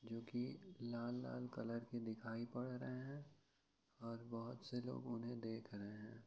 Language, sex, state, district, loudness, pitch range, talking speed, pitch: Hindi, male, Uttar Pradesh, Hamirpur, -49 LUFS, 115-125 Hz, 180 wpm, 115 Hz